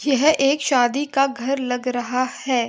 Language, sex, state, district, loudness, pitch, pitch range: Hindi, female, Uttar Pradesh, Hamirpur, -20 LUFS, 265 Hz, 250-275 Hz